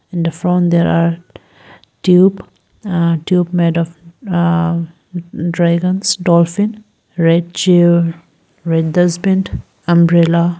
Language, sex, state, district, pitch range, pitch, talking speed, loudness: English, female, Arunachal Pradesh, Lower Dibang Valley, 170-180 Hz, 170 Hz, 110 wpm, -14 LUFS